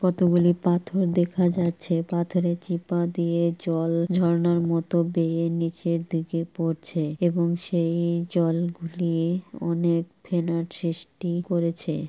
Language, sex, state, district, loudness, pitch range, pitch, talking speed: Bengali, male, West Bengal, Purulia, -25 LUFS, 170-175 Hz, 170 Hz, 110 wpm